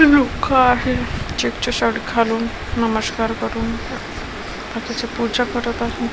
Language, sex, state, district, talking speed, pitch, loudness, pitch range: Marathi, female, Maharashtra, Washim, 110 wpm, 235 Hz, -20 LUFS, 225-245 Hz